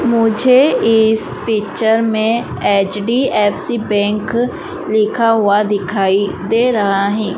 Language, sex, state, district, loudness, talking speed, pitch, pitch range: Hindi, female, Madhya Pradesh, Dhar, -14 LUFS, 100 wpm, 220 Hz, 205-230 Hz